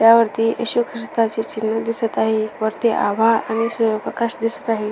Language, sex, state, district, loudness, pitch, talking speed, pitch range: Marathi, female, Maharashtra, Sindhudurg, -20 LUFS, 225 Hz, 145 wpm, 220-230 Hz